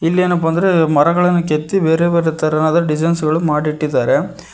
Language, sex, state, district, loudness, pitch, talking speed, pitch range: Kannada, male, Karnataka, Koppal, -15 LUFS, 165 Hz, 145 wpm, 155-170 Hz